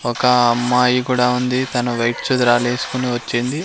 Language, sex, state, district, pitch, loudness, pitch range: Telugu, male, Andhra Pradesh, Sri Satya Sai, 125 Hz, -17 LUFS, 120-125 Hz